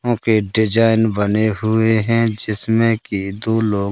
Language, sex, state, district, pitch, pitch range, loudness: Hindi, male, Madhya Pradesh, Katni, 110 Hz, 105-115 Hz, -17 LUFS